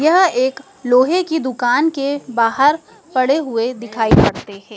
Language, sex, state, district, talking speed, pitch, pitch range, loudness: Hindi, female, Madhya Pradesh, Dhar, 150 wpm, 265 Hz, 240-315 Hz, -16 LUFS